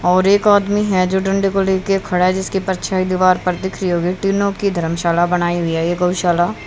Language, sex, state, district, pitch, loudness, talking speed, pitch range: Hindi, female, Haryana, Rohtak, 185 Hz, -16 LUFS, 235 wpm, 175-195 Hz